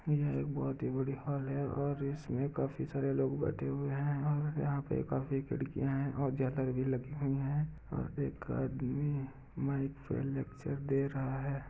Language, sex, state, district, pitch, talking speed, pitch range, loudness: Hindi, male, Uttar Pradesh, Jalaun, 140 Hz, 180 wpm, 135-140 Hz, -36 LUFS